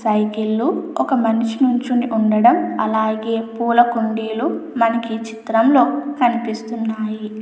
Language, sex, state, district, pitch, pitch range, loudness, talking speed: Telugu, female, Andhra Pradesh, Anantapur, 225 Hz, 220-245 Hz, -18 LUFS, 105 wpm